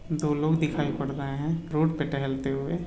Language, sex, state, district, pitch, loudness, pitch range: Hindi, male, Bihar, Purnia, 150 Hz, -28 LUFS, 140-155 Hz